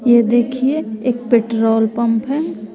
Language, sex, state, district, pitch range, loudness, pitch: Hindi, female, Bihar, West Champaran, 225-255 Hz, -16 LUFS, 235 Hz